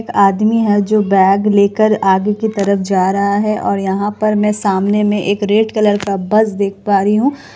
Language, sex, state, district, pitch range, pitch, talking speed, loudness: Hindi, female, Bihar, Kishanganj, 200-215 Hz, 205 Hz, 215 wpm, -14 LUFS